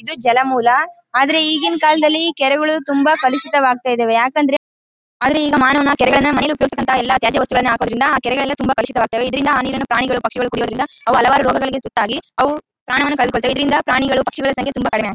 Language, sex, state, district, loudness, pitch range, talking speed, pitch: Kannada, female, Karnataka, Bellary, -15 LUFS, 250-290 Hz, 45 wpm, 265 Hz